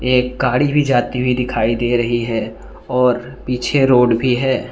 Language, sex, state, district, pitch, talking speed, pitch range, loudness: Hindi, male, Arunachal Pradesh, Lower Dibang Valley, 125 Hz, 180 wpm, 120-130 Hz, -16 LUFS